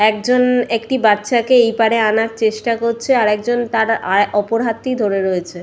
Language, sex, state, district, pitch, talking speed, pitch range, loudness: Bengali, female, West Bengal, Purulia, 225 Hz, 160 wpm, 210-240 Hz, -16 LUFS